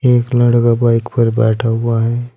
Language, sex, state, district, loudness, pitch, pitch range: Hindi, male, Uttar Pradesh, Saharanpur, -14 LUFS, 120 Hz, 115-120 Hz